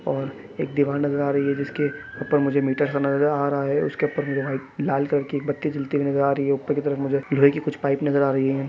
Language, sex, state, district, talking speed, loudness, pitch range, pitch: Hindi, male, West Bengal, Dakshin Dinajpur, 255 wpm, -23 LUFS, 140-145 Hz, 140 Hz